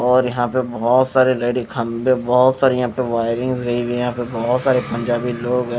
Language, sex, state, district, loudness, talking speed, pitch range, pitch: Hindi, male, Himachal Pradesh, Shimla, -18 LUFS, 240 wpm, 120-130 Hz, 125 Hz